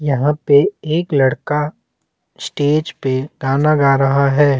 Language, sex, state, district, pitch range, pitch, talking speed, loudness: Hindi, male, Chhattisgarh, Jashpur, 135-150 Hz, 145 Hz, 130 wpm, -16 LUFS